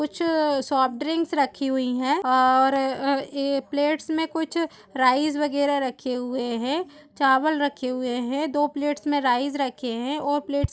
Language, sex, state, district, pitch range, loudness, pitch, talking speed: Hindi, female, Chhattisgarh, Raigarh, 260-295 Hz, -24 LUFS, 280 Hz, 155 wpm